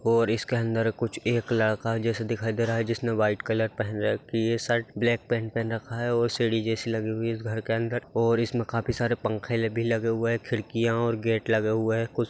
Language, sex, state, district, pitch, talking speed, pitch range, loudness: Hindi, male, Bihar, Saharsa, 115 Hz, 240 wpm, 110-115 Hz, -27 LUFS